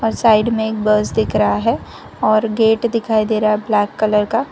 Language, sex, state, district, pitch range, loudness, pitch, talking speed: Hindi, female, Gujarat, Valsad, 215-225 Hz, -16 LUFS, 220 Hz, 210 wpm